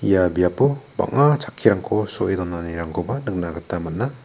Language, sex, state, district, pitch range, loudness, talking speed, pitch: Garo, male, Meghalaya, West Garo Hills, 85-135 Hz, -21 LUFS, 115 wpm, 100 Hz